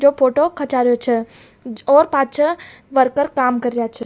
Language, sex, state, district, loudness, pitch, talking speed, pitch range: Rajasthani, female, Rajasthan, Nagaur, -17 LUFS, 265 Hz, 175 wpm, 245-285 Hz